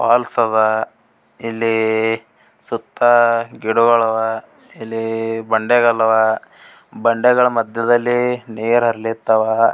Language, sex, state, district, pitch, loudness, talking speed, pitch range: Kannada, male, Karnataka, Gulbarga, 115 Hz, -17 LUFS, 85 wpm, 110-120 Hz